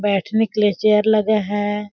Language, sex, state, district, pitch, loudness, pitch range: Hindi, female, Chhattisgarh, Balrampur, 210 Hz, -18 LUFS, 205-215 Hz